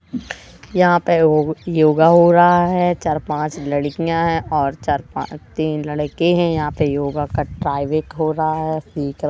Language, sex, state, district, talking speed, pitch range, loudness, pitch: Hindi, female, Madhya Pradesh, Katni, 160 wpm, 150-170 Hz, -17 LUFS, 155 Hz